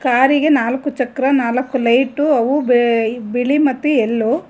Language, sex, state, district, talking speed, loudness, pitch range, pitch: Kannada, female, Karnataka, Bangalore, 135 wpm, -16 LUFS, 240-280 Hz, 260 Hz